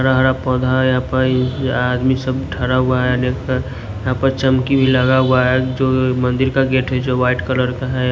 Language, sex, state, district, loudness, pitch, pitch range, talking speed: Hindi, male, Odisha, Nuapada, -16 LUFS, 130 Hz, 125-130 Hz, 215 wpm